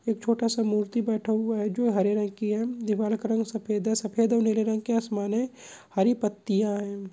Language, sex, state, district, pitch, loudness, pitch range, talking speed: Hindi, male, Bihar, Bhagalpur, 220 Hz, -27 LUFS, 210-230 Hz, 225 wpm